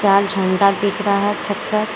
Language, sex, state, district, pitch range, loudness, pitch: Hindi, female, Jharkhand, Garhwa, 195-205 Hz, -18 LUFS, 200 Hz